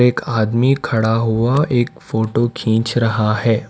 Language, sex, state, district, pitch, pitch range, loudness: Hindi, male, Karnataka, Bangalore, 115 Hz, 110-125 Hz, -17 LUFS